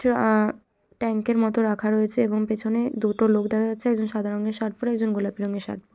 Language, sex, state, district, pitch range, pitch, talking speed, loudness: Bengali, female, West Bengal, Jalpaiguri, 215-225 Hz, 220 Hz, 260 wpm, -24 LUFS